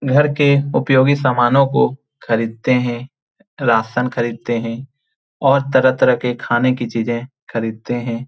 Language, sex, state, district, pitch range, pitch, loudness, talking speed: Hindi, male, Bihar, Jamui, 120-135 Hz, 125 Hz, -17 LUFS, 140 wpm